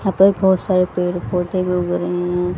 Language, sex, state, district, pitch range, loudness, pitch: Hindi, female, Haryana, Jhajjar, 180-190 Hz, -18 LUFS, 180 Hz